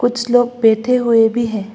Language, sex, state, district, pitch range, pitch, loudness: Hindi, female, Assam, Hailakandi, 225-245 Hz, 235 Hz, -14 LUFS